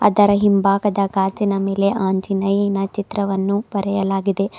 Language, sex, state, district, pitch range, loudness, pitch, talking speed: Kannada, female, Karnataka, Bidar, 195-205 Hz, -19 LUFS, 200 Hz, 90 wpm